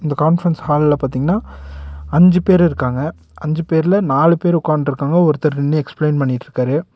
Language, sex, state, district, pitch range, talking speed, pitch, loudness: Tamil, male, Tamil Nadu, Nilgiris, 135-170 Hz, 140 wpm, 155 Hz, -16 LUFS